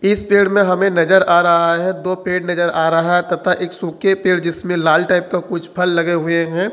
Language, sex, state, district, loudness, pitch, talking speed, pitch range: Hindi, male, Jharkhand, Ranchi, -15 LUFS, 180 Hz, 240 wpm, 170-185 Hz